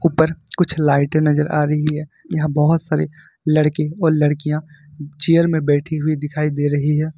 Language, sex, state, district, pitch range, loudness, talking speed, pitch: Hindi, male, Jharkhand, Ranchi, 150-155 Hz, -18 LUFS, 175 wpm, 150 Hz